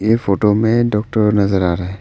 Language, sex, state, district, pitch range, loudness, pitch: Hindi, male, Arunachal Pradesh, Papum Pare, 100-110 Hz, -15 LUFS, 105 Hz